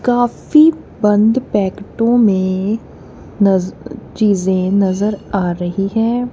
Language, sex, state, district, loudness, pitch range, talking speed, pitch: Hindi, female, Punjab, Kapurthala, -15 LUFS, 190-230 Hz, 85 wpm, 205 Hz